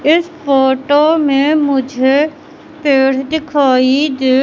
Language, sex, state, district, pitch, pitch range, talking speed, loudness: Hindi, male, Madhya Pradesh, Katni, 285 Hz, 265-305 Hz, 95 wpm, -13 LUFS